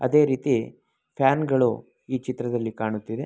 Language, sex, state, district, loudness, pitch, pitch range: Kannada, male, Karnataka, Mysore, -24 LUFS, 130 Hz, 115-135 Hz